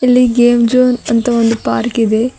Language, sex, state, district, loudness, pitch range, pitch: Kannada, female, Karnataka, Bidar, -12 LUFS, 230-250 Hz, 240 Hz